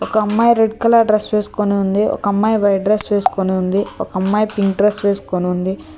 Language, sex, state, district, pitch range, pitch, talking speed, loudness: Telugu, female, Telangana, Hyderabad, 195-215 Hz, 205 Hz, 190 wpm, -16 LUFS